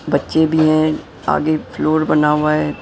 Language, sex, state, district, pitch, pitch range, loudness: Hindi, male, Maharashtra, Mumbai Suburban, 155 Hz, 150-155 Hz, -16 LUFS